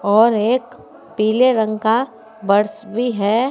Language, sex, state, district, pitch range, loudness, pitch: Hindi, female, Uttar Pradesh, Saharanpur, 215-240 Hz, -17 LUFS, 220 Hz